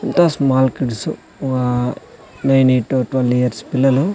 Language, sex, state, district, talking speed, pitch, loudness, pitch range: Telugu, male, Andhra Pradesh, Sri Satya Sai, 70 wpm, 130 Hz, -17 LUFS, 125-135 Hz